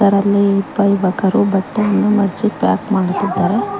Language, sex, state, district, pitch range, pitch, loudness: Kannada, female, Karnataka, Koppal, 195-205 Hz, 200 Hz, -15 LUFS